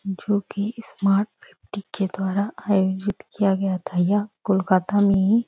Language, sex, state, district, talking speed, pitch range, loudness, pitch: Hindi, female, West Bengal, North 24 Parganas, 155 wpm, 190-205 Hz, -23 LUFS, 200 Hz